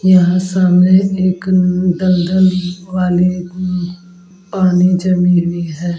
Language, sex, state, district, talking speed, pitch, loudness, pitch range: Hindi, female, Bihar, Vaishali, 100 wpm, 180 Hz, -13 LUFS, 180-185 Hz